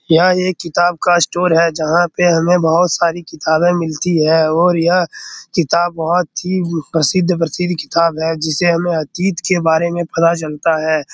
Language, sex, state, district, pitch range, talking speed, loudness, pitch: Hindi, male, Bihar, Araria, 160-175 Hz, 165 wpm, -15 LUFS, 170 Hz